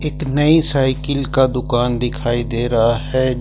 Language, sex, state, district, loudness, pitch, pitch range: Hindi, male, Jharkhand, Ranchi, -17 LUFS, 130 Hz, 120-145 Hz